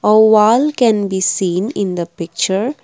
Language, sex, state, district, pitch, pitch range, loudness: English, female, Assam, Kamrup Metropolitan, 205 Hz, 185-220 Hz, -14 LUFS